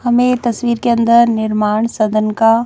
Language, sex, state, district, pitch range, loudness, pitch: Hindi, female, Madhya Pradesh, Bhopal, 215-240 Hz, -14 LUFS, 230 Hz